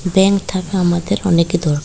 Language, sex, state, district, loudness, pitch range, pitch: Bengali, female, Tripura, Dhalai, -16 LUFS, 170-190 Hz, 180 Hz